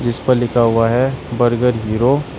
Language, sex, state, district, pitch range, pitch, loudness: Hindi, male, Uttar Pradesh, Shamli, 115-130 Hz, 120 Hz, -16 LUFS